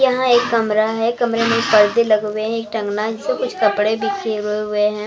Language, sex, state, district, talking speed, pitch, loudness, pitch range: Hindi, female, Maharashtra, Mumbai Suburban, 210 wpm, 220 Hz, -17 LUFS, 210-235 Hz